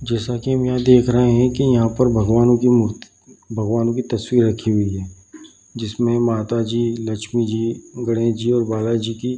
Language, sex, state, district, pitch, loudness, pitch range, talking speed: Hindi, male, Bihar, Bhagalpur, 115 Hz, -18 LUFS, 115-120 Hz, 205 wpm